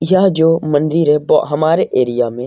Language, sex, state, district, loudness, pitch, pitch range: Hindi, male, Bihar, Jamui, -14 LUFS, 155 Hz, 135-165 Hz